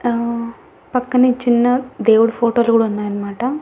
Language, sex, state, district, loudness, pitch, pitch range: Telugu, female, Andhra Pradesh, Annamaya, -16 LUFS, 235 Hz, 230-250 Hz